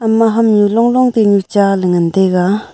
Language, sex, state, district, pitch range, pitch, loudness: Wancho, female, Arunachal Pradesh, Longding, 190-225 Hz, 205 Hz, -12 LUFS